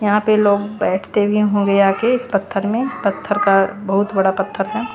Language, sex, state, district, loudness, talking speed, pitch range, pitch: Hindi, female, Haryana, Charkhi Dadri, -17 LUFS, 195 wpm, 195-210 Hz, 205 Hz